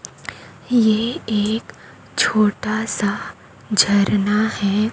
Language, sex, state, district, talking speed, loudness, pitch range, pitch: Hindi, female, Chhattisgarh, Raipur, 75 wpm, -19 LUFS, 205-220 Hz, 215 Hz